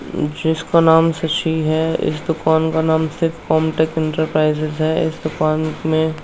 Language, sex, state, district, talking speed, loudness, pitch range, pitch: Hindi, male, Uttarakhand, Tehri Garhwal, 155 wpm, -18 LUFS, 155-160 Hz, 160 Hz